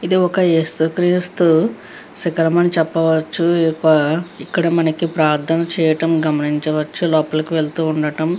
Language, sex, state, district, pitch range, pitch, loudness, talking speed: Telugu, female, Andhra Pradesh, Krishna, 155-170 Hz, 160 Hz, -17 LUFS, 130 wpm